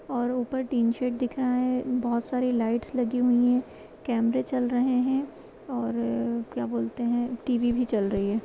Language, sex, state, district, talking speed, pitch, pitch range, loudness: Kumaoni, female, Uttarakhand, Uttarkashi, 185 wpm, 245 Hz, 230-255 Hz, -26 LUFS